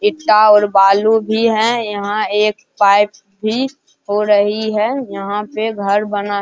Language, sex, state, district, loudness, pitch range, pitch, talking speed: Hindi, male, Bihar, Araria, -15 LUFS, 205-220 Hz, 210 Hz, 160 wpm